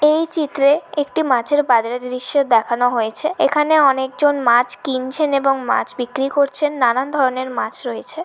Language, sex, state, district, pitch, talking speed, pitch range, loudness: Bengali, female, West Bengal, Malda, 270 Hz, 145 wpm, 250-295 Hz, -17 LUFS